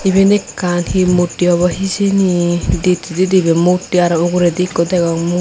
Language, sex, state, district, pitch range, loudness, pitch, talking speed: Chakma, female, Tripura, Unakoti, 175-185 Hz, -14 LUFS, 180 Hz, 165 wpm